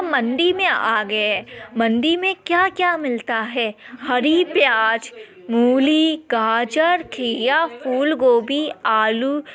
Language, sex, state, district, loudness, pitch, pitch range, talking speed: Hindi, female, Uttar Pradesh, Etah, -18 LUFS, 260 Hz, 230-325 Hz, 115 wpm